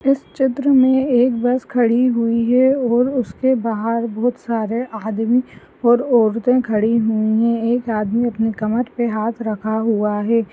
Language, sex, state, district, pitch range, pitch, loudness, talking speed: Hindi, female, Maharashtra, Solapur, 220-250 Hz, 235 Hz, -18 LUFS, 160 wpm